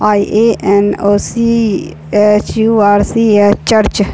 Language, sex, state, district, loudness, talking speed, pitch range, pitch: Hindi, male, Chhattisgarh, Raigarh, -11 LUFS, 70 wpm, 205-220 Hz, 210 Hz